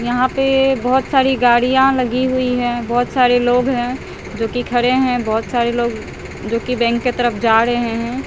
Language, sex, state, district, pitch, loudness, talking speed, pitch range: Hindi, female, Bihar, Katihar, 245 Hz, -16 LUFS, 180 wpm, 235-255 Hz